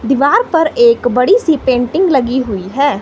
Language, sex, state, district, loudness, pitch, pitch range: Hindi, female, Himachal Pradesh, Shimla, -12 LUFS, 275 Hz, 245-325 Hz